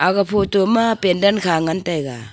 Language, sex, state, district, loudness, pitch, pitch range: Wancho, female, Arunachal Pradesh, Longding, -17 LUFS, 190 Hz, 165-200 Hz